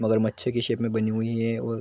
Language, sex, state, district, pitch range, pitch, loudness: Hindi, male, Chhattisgarh, Bilaspur, 110-115 Hz, 115 Hz, -26 LUFS